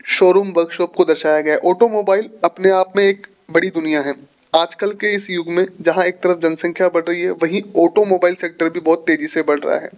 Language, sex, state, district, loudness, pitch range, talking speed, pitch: Hindi, male, Rajasthan, Jaipur, -16 LUFS, 165-190 Hz, 220 wpm, 175 Hz